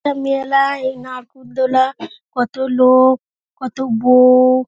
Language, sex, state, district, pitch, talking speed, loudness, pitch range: Bengali, female, West Bengal, Dakshin Dinajpur, 260 Hz, 130 wpm, -15 LUFS, 255-270 Hz